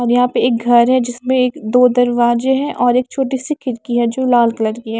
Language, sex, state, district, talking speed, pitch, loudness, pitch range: Hindi, female, Maharashtra, Mumbai Suburban, 265 wpm, 245 Hz, -15 LUFS, 240-255 Hz